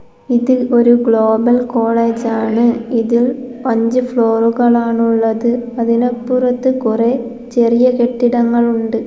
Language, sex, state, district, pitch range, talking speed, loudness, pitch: Malayalam, female, Kerala, Kozhikode, 230-245 Hz, 85 wpm, -14 LUFS, 235 Hz